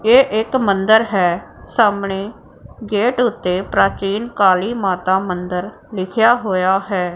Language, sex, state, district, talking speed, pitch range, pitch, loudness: Punjabi, female, Punjab, Pathankot, 115 wpm, 185-220 Hz, 195 Hz, -17 LUFS